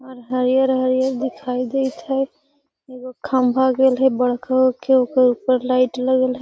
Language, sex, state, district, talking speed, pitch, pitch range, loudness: Magahi, female, Bihar, Gaya, 160 wpm, 255 Hz, 255-265 Hz, -19 LUFS